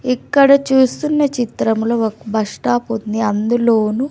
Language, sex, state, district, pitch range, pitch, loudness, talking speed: Telugu, female, Andhra Pradesh, Sri Satya Sai, 220-260 Hz, 235 Hz, -16 LUFS, 115 wpm